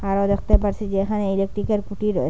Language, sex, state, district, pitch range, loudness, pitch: Bengali, female, Assam, Hailakandi, 195-210 Hz, -22 LUFS, 200 Hz